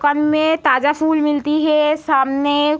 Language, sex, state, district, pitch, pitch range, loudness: Hindi, female, Uttar Pradesh, Deoria, 300 Hz, 290-305 Hz, -16 LUFS